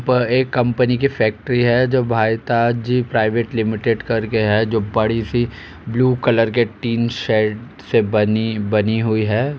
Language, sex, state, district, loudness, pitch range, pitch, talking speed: Hindi, male, Uttar Pradesh, Jalaun, -18 LUFS, 110-120 Hz, 115 Hz, 155 wpm